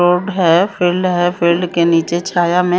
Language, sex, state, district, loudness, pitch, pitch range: Hindi, female, Chandigarh, Chandigarh, -14 LUFS, 175 Hz, 170-180 Hz